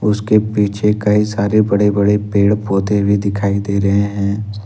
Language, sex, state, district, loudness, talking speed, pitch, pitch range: Hindi, male, Jharkhand, Ranchi, -15 LUFS, 165 wpm, 105 Hz, 100-105 Hz